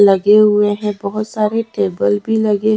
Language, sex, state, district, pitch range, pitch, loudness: Hindi, female, Haryana, Charkhi Dadri, 200-215 Hz, 210 Hz, -15 LUFS